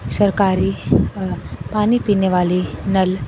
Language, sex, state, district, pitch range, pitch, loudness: Hindi, female, Bihar, Kaimur, 185-205 Hz, 195 Hz, -18 LUFS